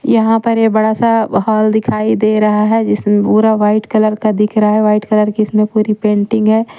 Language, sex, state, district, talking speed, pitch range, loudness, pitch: Hindi, female, Haryana, Rohtak, 220 wpm, 210-220 Hz, -12 LUFS, 215 Hz